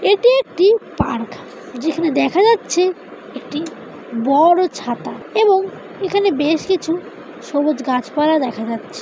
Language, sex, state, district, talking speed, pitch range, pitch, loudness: Bengali, female, West Bengal, North 24 Parganas, 120 wpm, 285-385 Hz, 325 Hz, -17 LUFS